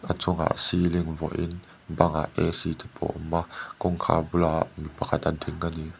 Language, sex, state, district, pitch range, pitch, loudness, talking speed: Mizo, male, Mizoram, Aizawl, 80-85 Hz, 85 Hz, -27 LUFS, 170 wpm